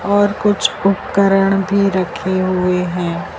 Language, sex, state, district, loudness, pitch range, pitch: Hindi, male, Madhya Pradesh, Dhar, -16 LUFS, 180-200 Hz, 195 Hz